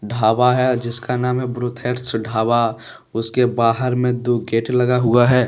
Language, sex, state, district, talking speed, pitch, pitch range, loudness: Hindi, male, Jharkhand, Deoghar, 165 wpm, 120 Hz, 115-125 Hz, -18 LUFS